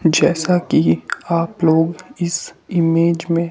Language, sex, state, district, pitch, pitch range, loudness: Hindi, male, Himachal Pradesh, Shimla, 170 Hz, 160-175 Hz, -17 LUFS